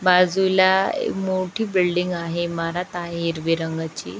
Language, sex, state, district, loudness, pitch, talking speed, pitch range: Marathi, female, Maharashtra, Aurangabad, -22 LUFS, 175 Hz, 115 wpm, 165-185 Hz